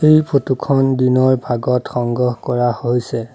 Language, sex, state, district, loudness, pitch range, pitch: Assamese, male, Assam, Sonitpur, -16 LUFS, 120-135 Hz, 125 Hz